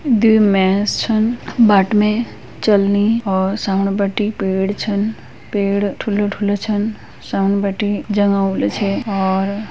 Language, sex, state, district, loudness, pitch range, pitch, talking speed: Hindi, female, Uttarakhand, Uttarkashi, -17 LUFS, 195-215 Hz, 205 Hz, 135 wpm